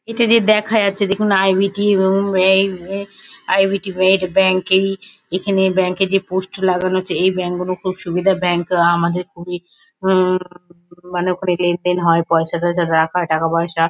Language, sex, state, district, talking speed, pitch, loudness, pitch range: Bengali, female, West Bengal, Kolkata, 175 wpm, 185 Hz, -17 LUFS, 175-195 Hz